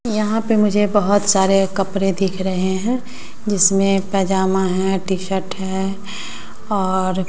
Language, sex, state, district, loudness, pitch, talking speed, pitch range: Hindi, female, Bihar, West Champaran, -18 LUFS, 195 Hz, 130 wpm, 190-205 Hz